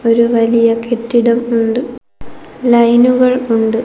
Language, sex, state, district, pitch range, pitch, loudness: Malayalam, female, Kerala, Kozhikode, 230-245 Hz, 235 Hz, -12 LUFS